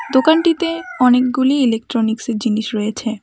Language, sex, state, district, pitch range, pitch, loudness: Bengali, female, West Bengal, Alipurduar, 225-280 Hz, 250 Hz, -16 LUFS